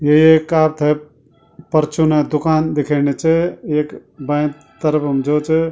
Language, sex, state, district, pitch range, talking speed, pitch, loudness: Garhwali, male, Uttarakhand, Tehri Garhwal, 150-160 Hz, 135 wpm, 150 Hz, -16 LUFS